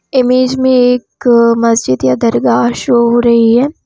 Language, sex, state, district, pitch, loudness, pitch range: Hindi, female, Bihar, Purnia, 240 Hz, -10 LUFS, 230-250 Hz